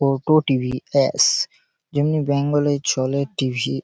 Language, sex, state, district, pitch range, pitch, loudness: Bengali, male, West Bengal, Malda, 130-145 Hz, 140 Hz, -20 LUFS